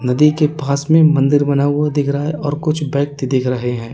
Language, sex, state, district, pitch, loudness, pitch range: Hindi, male, Uttar Pradesh, Lalitpur, 145 Hz, -16 LUFS, 135-150 Hz